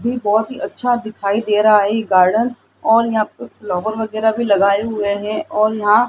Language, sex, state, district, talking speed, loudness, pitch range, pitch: Hindi, female, Rajasthan, Jaipur, 215 wpm, -17 LUFS, 205-225 Hz, 215 Hz